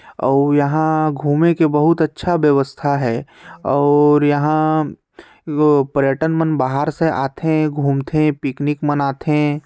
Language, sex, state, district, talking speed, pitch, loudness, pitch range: Chhattisgarhi, male, Chhattisgarh, Sarguja, 120 wpm, 150 Hz, -17 LUFS, 140-155 Hz